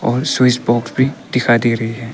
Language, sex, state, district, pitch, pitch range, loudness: Hindi, male, Arunachal Pradesh, Papum Pare, 120 Hz, 115-130 Hz, -16 LUFS